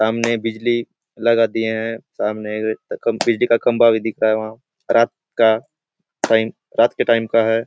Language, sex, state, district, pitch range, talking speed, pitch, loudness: Hindi, male, Chhattisgarh, Bastar, 110-115 Hz, 170 wpm, 115 Hz, -18 LUFS